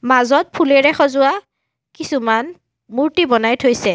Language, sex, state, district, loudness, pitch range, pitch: Assamese, female, Assam, Sonitpur, -15 LUFS, 240-300 Hz, 275 Hz